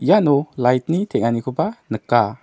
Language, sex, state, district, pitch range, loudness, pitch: Garo, male, Meghalaya, South Garo Hills, 115-160 Hz, -19 LUFS, 130 Hz